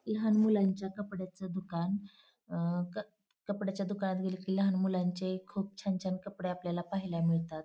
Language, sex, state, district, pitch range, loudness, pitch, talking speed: Marathi, female, Maharashtra, Pune, 180-200 Hz, -34 LUFS, 190 Hz, 110 wpm